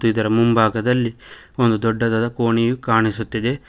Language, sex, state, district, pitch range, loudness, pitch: Kannada, male, Karnataka, Koppal, 110-120 Hz, -19 LUFS, 115 Hz